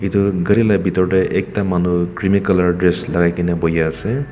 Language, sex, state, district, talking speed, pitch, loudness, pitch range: Nagamese, male, Nagaland, Kohima, 195 wpm, 90 Hz, -17 LUFS, 85-100 Hz